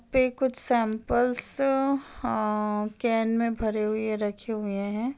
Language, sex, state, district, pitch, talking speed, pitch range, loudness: Hindi, female, Uttar Pradesh, Hamirpur, 225 Hz, 130 wpm, 215-250 Hz, -23 LUFS